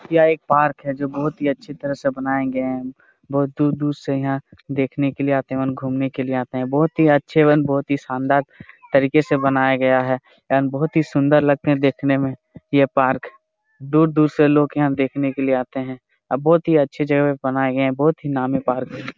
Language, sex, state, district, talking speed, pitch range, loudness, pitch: Hindi, male, Jharkhand, Jamtara, 225 wpm, 135-150 Hz, -19 LUFS, 140 Hz